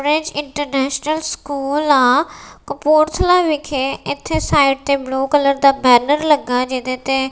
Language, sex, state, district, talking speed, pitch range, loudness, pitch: Punjabi, female, Punjab, Kapurthala, 130 wpm, 270-300 Hz, -16 LUFS, 285 Hz